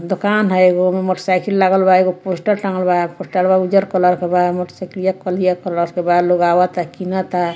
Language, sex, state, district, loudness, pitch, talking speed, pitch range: Bhojpuri, female, Bihar, Muzaffarpur, -16 LUFS, 185 Hz, 205 wpm, 180-190 Hz